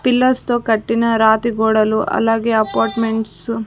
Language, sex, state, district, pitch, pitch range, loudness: Telugu, female, Andhra Pradesh, Sri Satya Sai, 225 Hz, 220-230 Hz, -16 LUFS